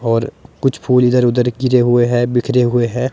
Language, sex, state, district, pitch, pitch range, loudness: Hindi, male, Himachal Pradesh, Shimla, 125 Hz, 120-130 Hz, -15 LUFS